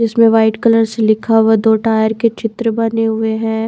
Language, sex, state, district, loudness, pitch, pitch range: Hindi, female, Haryana, Charkhi Dadri, -13 LUFS, 225 Hz, 220-225 Hz